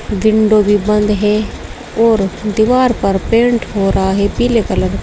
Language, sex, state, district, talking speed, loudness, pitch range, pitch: Hindi, female, Uttar Pradesh, Saharanpur, 165 wpm, -13 LUFS, 205-230 Hz, 215 Hz